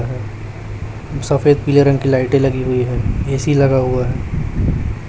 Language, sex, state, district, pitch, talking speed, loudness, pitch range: Hindi, male, Chhattisgarh, Raipur, 130 Hz, 140 wpm, -16 LUFS, 115-140 Hz